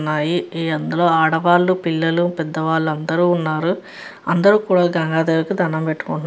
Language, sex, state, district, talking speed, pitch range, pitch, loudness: Telugu, female, Andhra Pradesh, Chittoor, 135 wpm, 160-175 Hz, 165 Hz, -18 LUFS